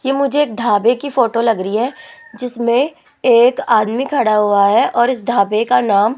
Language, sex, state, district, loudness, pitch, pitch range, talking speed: Hindi, female, Rajasthan, Jaipur, -15 LUFS, 240 Hz, 220-270 Hz, 205 wpm